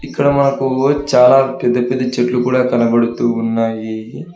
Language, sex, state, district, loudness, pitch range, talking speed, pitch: Telugu, male, Telangana, Hyderabad, -14 LUFS, 120-135 Hz, 125 wpm, 125 Hz